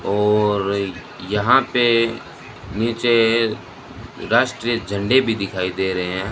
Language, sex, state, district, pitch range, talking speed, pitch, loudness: Hindi, male, Rajasthan, Bikaner, 100-115 Hz, 105 wpm, 105 Hz, -19 LUFS